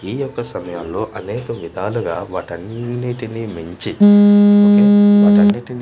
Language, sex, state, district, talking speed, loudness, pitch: Telugu, male, Andhra Pradesh, Manyam, 105 wpm, -14 LUFS, 135 Hz